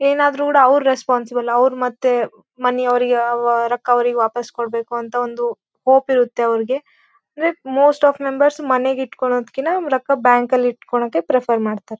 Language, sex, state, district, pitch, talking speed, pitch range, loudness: Kannada, female, Karnataka, Bellary, 250 Hz, 135 wpm, 240-270 Hz, -17 LUFS